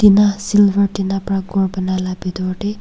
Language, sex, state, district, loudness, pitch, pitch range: Nagamese, female, Nagaland, Kohima, -17 LUFS, 195 Hz, 185-205 Hz